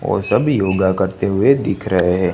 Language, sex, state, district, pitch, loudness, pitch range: Hindi, male, Gujarat, Gandhinagar, 95 Hz, -16 LUFS, 95-105 Hz